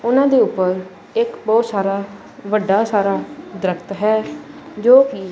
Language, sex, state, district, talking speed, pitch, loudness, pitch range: Punjabi, male, Punjab, Kapurthala, 135 wpm, 210 Hz, -17 LUFS, 195-255 Hz